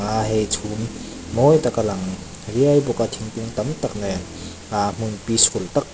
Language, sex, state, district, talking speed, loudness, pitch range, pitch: Mizo, male, Mizoram, Aizawl, 180 wpm, -21 LUFS, 100-115 Hz, 110 Hz